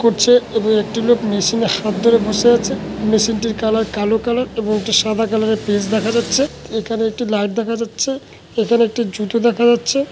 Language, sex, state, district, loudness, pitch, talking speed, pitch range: Bengali, male, West Bengal, Malda, -17 LUFS, 225 Hz, 180 wpm, 215-235 Hz